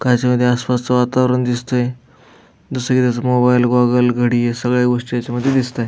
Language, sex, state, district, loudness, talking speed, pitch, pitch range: Marathi, male, Maharashtra, Aurangabad, -16 LUFS, 130 wpm, 125 Hz, 120-125 Hz